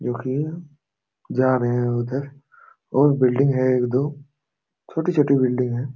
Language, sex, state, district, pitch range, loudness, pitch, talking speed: Hindi, male, Jharkhand, Jamtara, 125-145 Hz, -21 LUFS, 130 Hz, 150 wpm